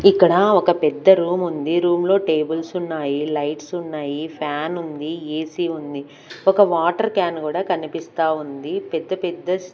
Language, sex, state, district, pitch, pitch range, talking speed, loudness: Telugu, female, Andhra Pradesh, Manyam, 165 Hz, 155-180 Hz, 135 wpm, -20 LUFS